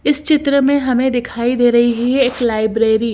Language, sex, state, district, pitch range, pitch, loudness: Hindi, female, Chandigarh, Chandigarh, 235-270 Hz, 245 Hz, -15 LUFS